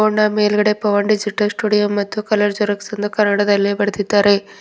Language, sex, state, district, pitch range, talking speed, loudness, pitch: Kannada, female, Karnataka, Bidar, 205-210 Hz, 145 wpm, -17 LUFS, 210 Hz